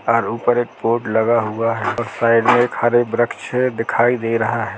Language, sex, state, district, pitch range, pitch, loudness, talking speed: Hindi, male, Uttar Pradesh, Jalaun, 115-120 Hz, 115 Hz, -18 LUFS, 215 wpm